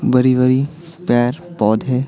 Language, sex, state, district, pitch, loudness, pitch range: Hindi, male, Bihar, Patna, 130 Hz, -16 LUFS, 120-155 Hz